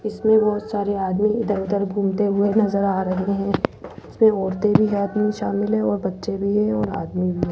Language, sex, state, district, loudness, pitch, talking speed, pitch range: Hindi, female, Rajasthan, Jaipur, -21 LUFS, 200 Hz, 200 wpm, 180-210 Hz